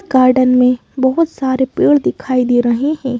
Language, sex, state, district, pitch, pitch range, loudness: Hindi, female, Madhya Pradesh, Bhopal, 260 Hz, 250-275 Hz, -14 LUFS